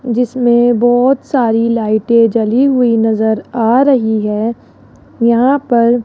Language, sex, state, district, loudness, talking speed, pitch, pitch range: Hindi, female, Rajasthan, Jaipur, -12 LUFS, 130 wpm, 235 Hz, 225-250 Hz